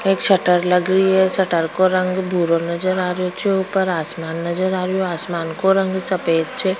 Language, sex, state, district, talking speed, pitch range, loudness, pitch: Rajasthani, female, Rajasthan, Churu, 185 wpm, 170-190 Hz, -18 LUFS, 185 Hz